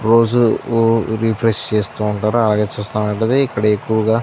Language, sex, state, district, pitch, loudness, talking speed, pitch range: Telugu, male, Andhra Pradesh, Anantapur, 110 Hz, -16 LUFS, 115 wpm, 105-115 Hz